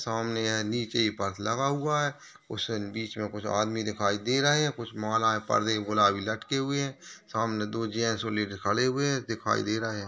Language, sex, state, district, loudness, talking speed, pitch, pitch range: Hindi, male, Maharashtra, Solapur, -29 LUFS, 210 wpm, 110 Hz, 105-125 Hz